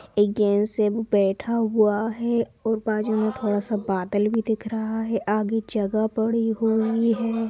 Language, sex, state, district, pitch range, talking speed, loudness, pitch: Angika, female, Bihar, Supaul, 210-225 Hz, 160 wpm, -23 LUFS, 220 Hz